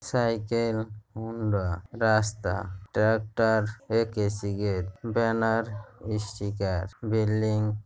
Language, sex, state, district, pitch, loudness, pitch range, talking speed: Bengali, male, West Bengal, Jhargram, 110 Hz, -28 LUFS, 100-110 Hz, 60 wpm